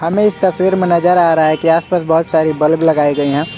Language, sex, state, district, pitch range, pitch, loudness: Hindi, male, Jharkhand, Garhwa, 155-180 Hz, 165 Hz, -13 LUFS